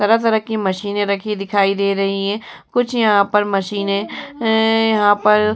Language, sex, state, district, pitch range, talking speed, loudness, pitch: Hindi, female, Uttar Pradesh, Muzaffarnagar, 200-220 Hz, 170 wpm, -17 LUFS, 210 Hz